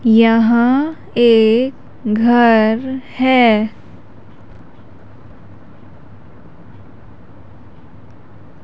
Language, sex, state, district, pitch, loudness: Hindi, female, Madhya Pradesh, Umaria, 115 Hz, -13 LUFS